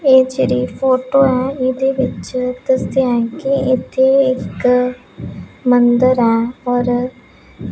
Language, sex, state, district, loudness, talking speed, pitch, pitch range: Punjabi, female, Punjab, Pathankot, -15 LUFS, 115 wpm, 255 Hz, 245-265 Hz